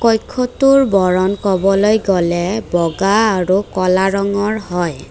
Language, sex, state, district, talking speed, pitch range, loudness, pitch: Assamese, female, Assam, Kamrup Metropolitan, 105 wpm, 185-215 Hz, -15 LUFS, 195 Hz